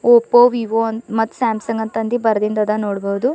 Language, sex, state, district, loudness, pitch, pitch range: Kannada, female, Karnataka, Bidar, -17 LUFS, 225 Hz, 215-235 Hz